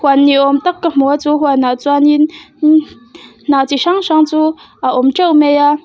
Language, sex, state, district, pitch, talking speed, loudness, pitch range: Mizo, female, Mizoram, Aizawl, 290 Hz, 225 wpm, -12 LUFS, 275-310 Hz